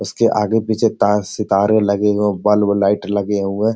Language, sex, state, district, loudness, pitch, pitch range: Hindi, male, Bihar, Jamui, -16 LUFS, 105 Hz, 100-105 Hz